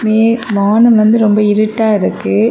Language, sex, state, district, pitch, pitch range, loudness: Tamil, female, Tamil Nadu, Kanyakumari, 215 Hz, 210-225 Hz, -11 LUFS